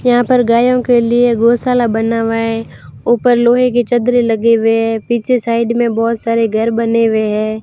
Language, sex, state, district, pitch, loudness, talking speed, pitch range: Hindi, female, Rajasthan, Barmer, 230 Hz, -13 LUFS, 190 wpm, 225-245 Hz